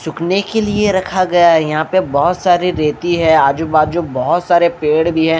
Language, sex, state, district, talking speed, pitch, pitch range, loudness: Hindi, male, Bihar, Katihar, 210 wpm, 170 Hz, 155-180 Hz, -14 LUFS